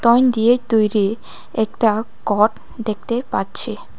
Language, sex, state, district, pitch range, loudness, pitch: Bengali, female, Tripura, West Tripura, 215-235 Hz, -19 LUFS, 225 Hz